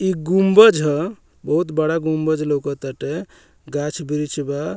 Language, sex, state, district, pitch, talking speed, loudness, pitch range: Bhojpuri, male, Bihar, Muzaffarpur, 155 Hz, 140 wpm, -19 LUFS, 145-165 Hz